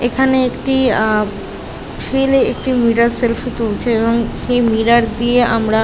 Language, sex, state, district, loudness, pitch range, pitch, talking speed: Bengali, female, West Bengal, Jhargram, -15 LUFS, 225-250 Hz, 235 Hz, 145 wpm